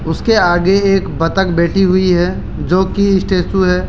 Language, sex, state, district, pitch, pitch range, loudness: Hindi, male, Rajasthan, Jaipur, 185 Hz, 175-195 Hz, -13 LUFS